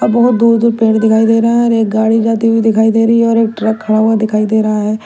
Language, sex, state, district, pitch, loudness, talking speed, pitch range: Hindi, female, Punjab, Kapurthala, 225 Hz, -11 LUFS, 310 wpm, 220-230 Hz